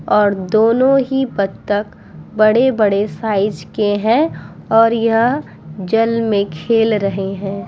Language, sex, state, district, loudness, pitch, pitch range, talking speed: Hindi, female, Bihar, Vaishali, -16 LUFS, 215 Hz, 200-230 Hz, 115 wpm